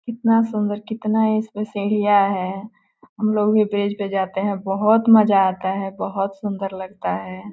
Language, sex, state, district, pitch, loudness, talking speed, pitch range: Hindi, female, Bihar, Gopalganj, 205 Hz, -20 LUFS, 175 wpm, 195-215 Hz